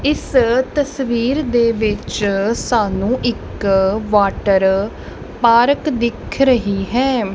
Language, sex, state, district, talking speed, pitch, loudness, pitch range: Punjabi, male, Punjab, Kapurthala, 90 wpm, 235 Hz, -16 LUFS, 200-255 Hz